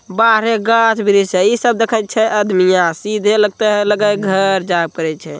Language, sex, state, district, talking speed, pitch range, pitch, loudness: Hindi, male, Bihar, Begusarai, 135 wpm, 185-220 Hz, 210 Hz, -14 LUFS